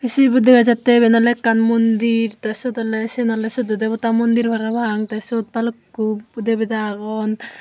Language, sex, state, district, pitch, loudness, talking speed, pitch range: Chakma, female, Tripura, Unakoti, 230 Hz, -18 LUFS, 165 wpm, 220-235 Hz